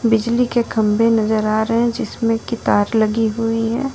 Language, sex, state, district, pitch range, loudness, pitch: Hindi, female, Jharkhand, Ranchi, 220-235 Hz, -17 LUFS, 225 Hz